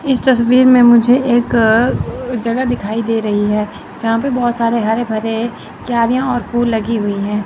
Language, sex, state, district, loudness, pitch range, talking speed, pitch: Hindi, female, Chandigarh, Chandigarh, -14 LUFS, 220-245 Hz, 185 wpm, 235 Hz